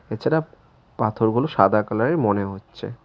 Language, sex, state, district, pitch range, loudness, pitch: Bengali, male, West Bengal, Cooch Behar, 105-125 Hz, -21 LUFS, 110 Hz